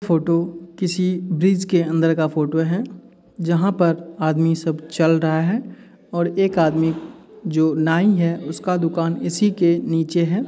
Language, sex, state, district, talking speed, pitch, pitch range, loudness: Hindi, male, Uttar Pradesh, Hamirpur, 155 wpm, 170 Hz, 160-185 Hz, -20 LUFS